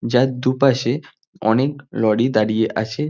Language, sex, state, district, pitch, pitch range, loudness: Bengali, male, West Bengal, North 24 Parganas, 125 Hz, 110-135 Hz, -19 LUFS